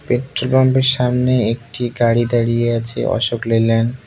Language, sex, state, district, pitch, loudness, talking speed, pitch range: Bengali, male, West Bengal, Cooch Behar, 120 Hz, -17 LUFS, 150 wpm, 115-125 Hz